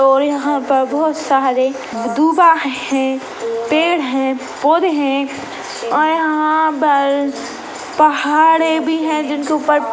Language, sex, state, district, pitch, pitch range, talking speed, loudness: Hindi, female, Chhattisgarh, Sukma, 295 Hz, 270-315 Hz, 115 wpm, -15 LUFS